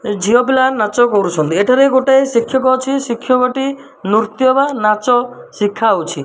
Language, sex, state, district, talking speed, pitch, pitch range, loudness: Odia, male, Odisha, Malkangiri, 135 wpm, 245 Hz, 215-265 Hz, -14 LUFS